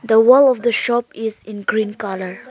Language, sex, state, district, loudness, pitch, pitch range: English, female, Arunachal Pradesh, Lower Dibang Valley, -17 LUFS, 220 Hz, 210-240 Hz